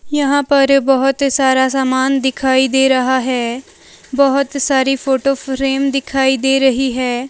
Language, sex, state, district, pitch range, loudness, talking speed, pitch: Hindi, female, Himachal Pradesh, Shimla, 260-275 Hz, -14 LUFS, 140 wpm, 270 Hz